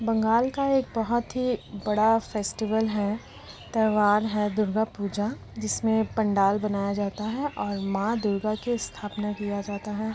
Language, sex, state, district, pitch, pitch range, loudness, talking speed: Hindi, female, Bihar, Lakhisarai, 215 Hz, 205-225 Hz, -26 LUFS, 155 wpm